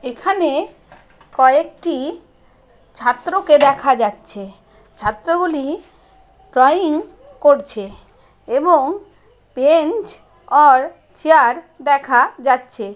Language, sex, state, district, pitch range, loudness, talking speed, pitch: Bengali, female, West Bengal, Purulia, 255-340 Hz, -16 LUFS, 55 wpm, 290 Hz